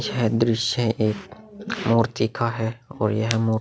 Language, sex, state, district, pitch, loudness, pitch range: Hindi, male, Bihar, Vaishali, 115 Hz, -23 LUFS, 110-120 Hz